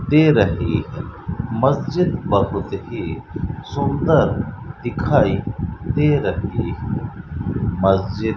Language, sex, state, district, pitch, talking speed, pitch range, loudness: Hindi, male, Rajasthan, Bikaner, 110 Hz, 85 wpm, 100-140 Hz, -20 LUFS